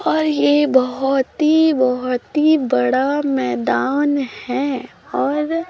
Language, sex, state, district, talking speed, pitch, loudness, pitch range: Hindi, female, Chhattisgarh, Raipur, 105 wpm, 275 Hz, -18 LUFS, 255-300 Hz